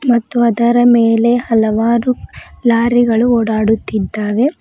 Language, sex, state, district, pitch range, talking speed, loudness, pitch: Kannada, female, Karnataka, Bidar, 225-240 Hz, 80 wpm, -13 LUFS, 235 Hz